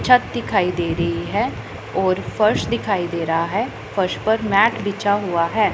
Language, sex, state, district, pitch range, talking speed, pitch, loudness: Hindi, female, Punjab, Pathankot, 170-210 Hz, 175 wpm, 190 Hz, -20 LUFS